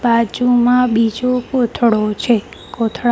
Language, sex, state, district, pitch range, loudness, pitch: Gujarati, female, Gujarat, Gandhinagar, 225-250 Hz, -15 LUFS, 240 Hz